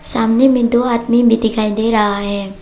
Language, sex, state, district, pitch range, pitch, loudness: Hindi, female, Arunachal Pradesh, Papum Pare, 210-235 Hz, 225 Hz, -14 LUFS